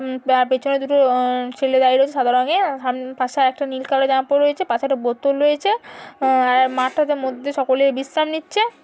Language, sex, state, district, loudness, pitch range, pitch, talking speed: Bengali, female, West Bengal, Purulia, -19 LUFS, 255-285 Hz, 270 Hz, 205 wpm